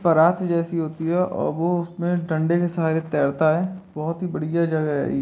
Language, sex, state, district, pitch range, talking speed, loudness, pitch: Hindi, male, Bihar, Purnia, 160-175 Hz, 205 wpm, -22 LUFS, 165 Hz